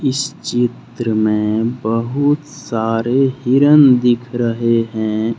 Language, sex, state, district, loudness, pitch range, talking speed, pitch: Hindi, male, Jharkhand, Deoghar, -16 LUFS, 115-135 Hz, 100 wpm, 120 Hz